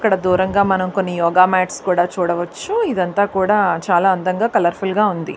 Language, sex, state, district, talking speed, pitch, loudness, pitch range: Telugu, female, Andhra Pradesh, Anantapur, 155 wpm, 185 Hz, -17 LUFS, 175-200 Hz